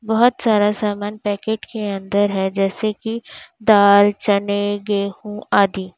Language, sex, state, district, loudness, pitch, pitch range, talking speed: Hindi, female, Uttar Pradesh, Lalitpur, -18 LUFS, 205 Hz, 200-215 Hz, 130 wpm